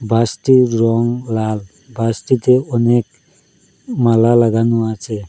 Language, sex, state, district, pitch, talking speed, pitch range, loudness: Bengali, male, Assam, Hailakandi, 115 Hz, 90 wpm, 110-120 Hz, -15 LUFS